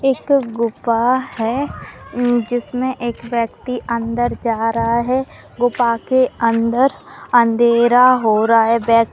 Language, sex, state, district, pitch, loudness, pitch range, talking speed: Hindi, female, Rajasthan, Nagaur, 235 Hz, -17 LUFS, 230-250 Hz, 125 wpm